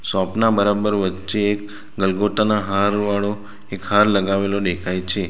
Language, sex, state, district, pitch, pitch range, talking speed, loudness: Gujarati, male, Gujarat, Valsad, 100 Hz, 95-105 Hz, 145 wpm, -19 LUFS